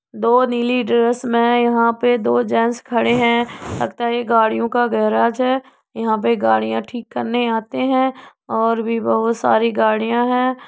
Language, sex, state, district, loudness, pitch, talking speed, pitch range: Hindi, female, Uttar Pradesh, Budaun, -18 LUFS, 235 Hz, 170 wpm, 225-245 Hz